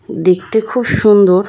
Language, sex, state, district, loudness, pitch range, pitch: Bengali, female, West Bengal, Kolkata, -12 LUFS, 185-220 Hz, 200 Hz